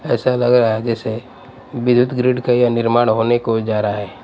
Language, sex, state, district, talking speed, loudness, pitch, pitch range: Hindi, male, Punjab, Pathankot, 210 wpm, -16 LUFS, 120 Hz, 110-125 Hz